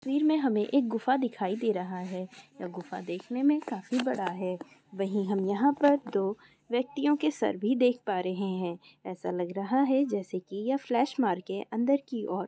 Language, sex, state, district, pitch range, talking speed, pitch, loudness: Hindi, female, Goa, North and South Goa, 190-265 Hz, 200 wpm, 220 Hz, -30 LUFS